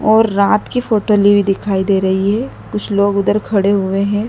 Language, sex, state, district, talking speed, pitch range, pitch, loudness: Hindi, female, Madhya Pradesh, Dhar, 225 wpm, 195-210 Hz, 200 Hz, -14 LUFS